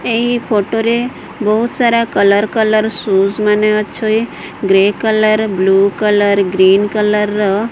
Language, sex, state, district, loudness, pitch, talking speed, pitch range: Odia, female, Odisha, Sambalpur, -13 LUFS, 215 Hz, 130 wpm, 200-225 Hz